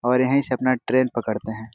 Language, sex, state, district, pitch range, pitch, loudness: Hindi, male, Chhattisgarh, Korba, 110-130 Hz, 125 Hz, -22 LUFS